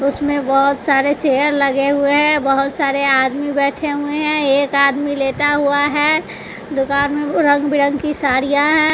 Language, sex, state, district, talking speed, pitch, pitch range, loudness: Hindi, female, Bihar, West Champaran, 170 wpm, 285 Hz, 275-290 Hz, -15 LUFS